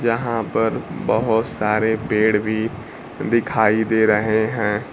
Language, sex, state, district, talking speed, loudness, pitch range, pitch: Hindi, male, Bihar, Kaimur, 120 wpm, -19 LUFS, 110-115 Hz, 110 Hz